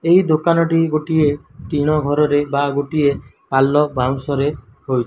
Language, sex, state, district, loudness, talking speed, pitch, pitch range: Odia, male, Odisha, Malkangiri, -17 LUFS, 165 wpm, 145 Hz, 140-155 Hz